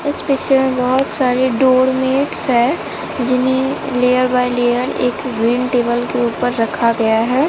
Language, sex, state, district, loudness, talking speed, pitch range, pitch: Hindi, female, Bihar, Katihar, -16 LUFS, 160 wpm, 240-265 Hz, 250 Hz